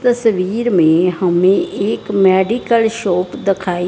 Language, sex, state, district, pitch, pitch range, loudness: Hindi, female, Punjab, Fazilka, 195 Hz, 180-225 Hz, -15 LUFS